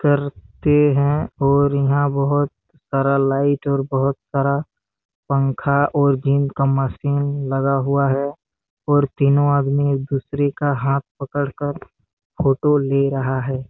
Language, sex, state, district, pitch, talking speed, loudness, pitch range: Hindi, male, Chhattisgarh, Bastar, 140 Hz, 130 wpm, -19 LUFS, 135-145 Hz